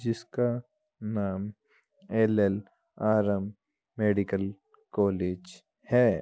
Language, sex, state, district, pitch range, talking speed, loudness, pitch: Hindi, male, Uttar Pradesh, Muzaffarnagar, 100-115 Hz, 70 wpm, -29 LUFS, 105 Hz